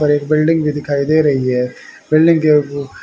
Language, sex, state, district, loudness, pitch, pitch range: Hindi, male, Haryana, Rohtak, -14 LUFS, 150 Hz, 140-155 Hz